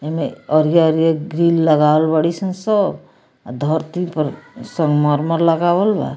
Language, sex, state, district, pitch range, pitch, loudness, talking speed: Bhojpuri, female, Bihar, Muzaffarpur, 155-170 Hz, 160 Hz, -17 LUFS, 125 wpm